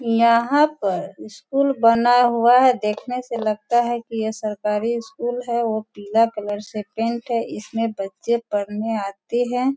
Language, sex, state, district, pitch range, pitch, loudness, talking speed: Hindi, female, Bihar, Sitamarhi, 210-240 Hz, 230 Hz, -21 LUFS, 160 wpm